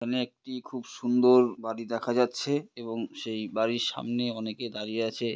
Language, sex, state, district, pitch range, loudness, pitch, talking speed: Bengali, male, West Bengal, Purulia, 115-125 Hz, -29 LUFS, 120 Hz, 155 wpm